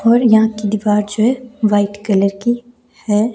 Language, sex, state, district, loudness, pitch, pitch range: Hindi, female, Himachal Pradesh, Shimla, -15 LUFS, 215 Hz, 205-240 Hz